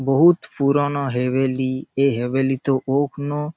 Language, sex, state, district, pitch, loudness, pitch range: Bengali, male, West Bengal, Malda, 135 Hz, -20 LUFS, 130-145 Hz